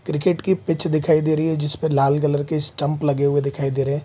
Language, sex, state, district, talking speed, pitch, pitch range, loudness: Hindi, male, Bihar, Saharsa, 265 wpm, 150 Hz, 145-155 Hz, -20 LUFS